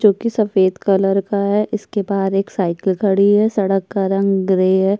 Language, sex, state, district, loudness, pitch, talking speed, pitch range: Hindi, female, Uttar Pradesh, Jyotiba Phule Nagar, -17 LUFS, 195 Hz, 190 wpm, 195-205 Hz